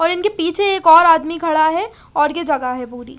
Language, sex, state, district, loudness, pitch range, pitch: Hindi, female, Chandigarh, Chandigarh, -15 LUFS, 295-345 Hz, 330 Hz